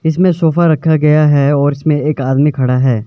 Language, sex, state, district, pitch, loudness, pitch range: Hindi, male, Himachal Pradesh, Shimla, 150 Hz, -12 LUFS, 140-160 Hz